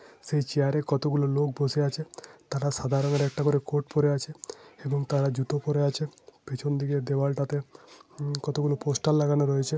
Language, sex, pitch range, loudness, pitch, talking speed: Bengali, male, 140-145 Hz, -27 LUFS, 145 Hz, 195 wpm